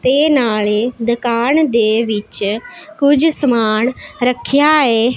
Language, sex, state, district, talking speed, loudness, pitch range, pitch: Punjabi, female, Punjab, Pathankot, 105 wpm, -14 LUFS, 225-285 Hz, 245 Hz